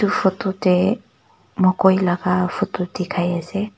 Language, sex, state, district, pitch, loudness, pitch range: Nagamese, female, Nagaland, Kohima, 185 Hz, -20 LUFS, 180-200 Hz